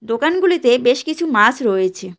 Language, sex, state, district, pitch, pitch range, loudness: Bengali, female, West Bengal, Cooch Behar, 245 Hz, 210-315 Hz, -16 LUFS